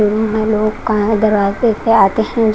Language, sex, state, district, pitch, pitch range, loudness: Hindi, female, Punjab, Kapurthala, 215 Hz, 215-220 Hz, -14 LUFS